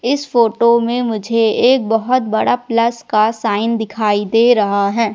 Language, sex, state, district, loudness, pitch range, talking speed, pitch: Hindi, female, Madhya Pradesh, Katni, -15 LUFS, 220-240 Hz, 165 wpm, 230 Hz